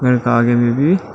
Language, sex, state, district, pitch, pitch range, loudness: Hindi, male, Arunachal Pradesh, Lower Dibang Valley, 120 Hz, 120-140 Hz, -14 LUFS